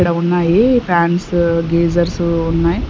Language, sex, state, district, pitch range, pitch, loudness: Telugu, female, Andhra Pradesh, Sri Satya Sai, 170-175 Hz, 170 Hz, -15 LUFS